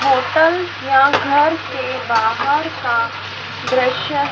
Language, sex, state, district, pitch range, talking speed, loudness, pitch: Hindi, female, Madhya Pradesh, Dhar, 250-295 Hz, 95 wpm, -17 LUFS, 275 Hz